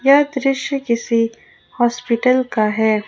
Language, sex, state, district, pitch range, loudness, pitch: Hindi, female, Jharkhand, Ranchi, 230-270 Hz, -18 LUFS, 240 Hz